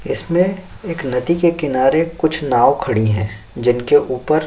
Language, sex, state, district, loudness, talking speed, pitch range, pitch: Hindi, male, Uttar Pradesh, Jyotiba Phule Nagar, -17 LUFS, 160 wpm, 125-170 Hz, 145 Hz